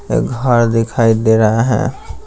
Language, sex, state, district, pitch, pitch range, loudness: Hindi, male, Bihar, Patna, 115 Hz, 110-120 Hz, -14 LUFS